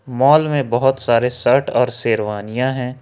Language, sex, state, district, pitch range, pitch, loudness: Hindi, male, Jharkhand, Ranchi, 115-135 Hz, 125 Hz, -17 LUFS